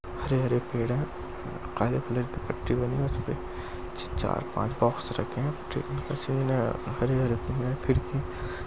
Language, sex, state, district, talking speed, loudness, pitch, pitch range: Hindi, male, Maharashtra, Aurangabad, 150 wpm, -30 LUFS, 120 Hz, 90-125 Hz